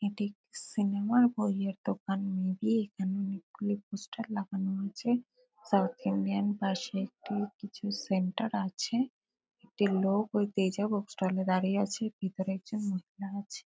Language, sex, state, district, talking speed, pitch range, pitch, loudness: Bengali, female, West Bengal, Kolkata, 140 wpm, 190-210 Hz, 200 Hz, -32 LUFS